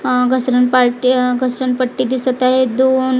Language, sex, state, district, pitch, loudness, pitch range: Marathi, female, Maharashtra, Gondia, 255 Hz, -15 LUFS, 250-255 Hz